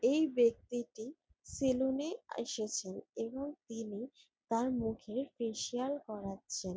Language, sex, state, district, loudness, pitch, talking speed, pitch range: Bengali, female, West Bengal, Jalpaiguri, -37 LUFS, 240 Hz, 100 wpm, 225-270 Hz